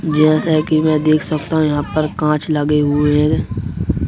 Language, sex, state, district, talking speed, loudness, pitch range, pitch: Hindi, male, Madhya Pradesh, Bhopal, 175 wpm, -16 LUFS, 145-155 Hz, 150 Hz